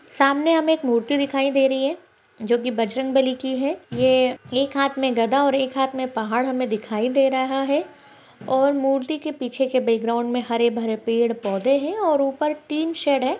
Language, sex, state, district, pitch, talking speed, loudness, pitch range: Hindi, female, Maharashtra, Dhule, 265 Hz, 200 wpm, -21 LUFS, 240-275 Hz